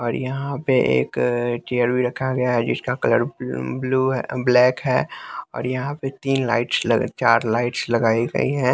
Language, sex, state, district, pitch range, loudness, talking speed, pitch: Hindi, male, Bihar, West Champaran, 120-130 Hz, -21 LUFS, 170 wpm, 125 Hz